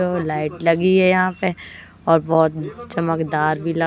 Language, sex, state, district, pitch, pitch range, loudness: Hindi, female, Madhya Pradesh, Katni, 165 Hz, 155-180 Hz, -19 LUFS